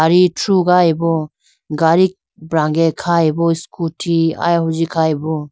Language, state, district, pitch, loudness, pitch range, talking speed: Idu Mishmi, Arunachal Pradesh, Lower Dibang Valley, 165 Hz, -16 LUFS, 160-170 Hz, 85 wpm